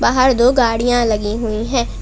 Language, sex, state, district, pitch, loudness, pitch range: Hindi, female, Jharkhand, Palamu, 235 Hz, -15 LUFS, 220-245 Hz